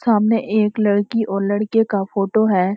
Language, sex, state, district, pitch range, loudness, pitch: Hindi, female, Uttarakhand, Uttarkashi, 200-220 Hz, -18 LUFS, 210 Hz